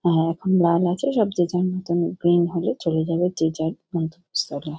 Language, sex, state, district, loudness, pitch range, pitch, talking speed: Bengali, female, West Bengal, Kolkata, -22 LUFS, 165-180 Hz, 170 Hz, 200 wpm